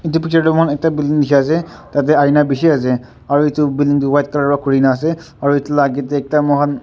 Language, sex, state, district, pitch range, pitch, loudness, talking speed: Nagamese, male, Nagaland, Dimapur, 140-150 Hz, 145 Hz, -15 LUFS, 230 wpm